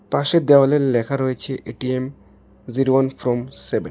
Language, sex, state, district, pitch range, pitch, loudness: Bengali, male, Tripura, West Tripura, 120-135 Hz, 130 Hz, -19 LUFS